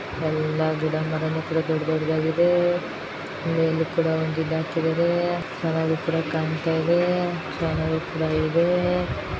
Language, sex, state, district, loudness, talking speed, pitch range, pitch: Kannada, female, Karnataka, Dakshina Kannada, -24 LUFS, 90 wpm, 160-170 Hz, 160 Hz